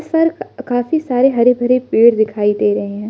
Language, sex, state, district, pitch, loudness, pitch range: Hindi, female, Arunachal Pradesh, Lower Dibang Valley, 245 Hz, -15 LUFS, 215-265 Hz